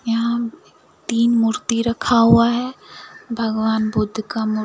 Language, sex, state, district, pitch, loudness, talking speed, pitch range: Hindi, female, Bihar, Katihar, 230 Hz, -19 LUFS, 130 wpm, 220-235 Hz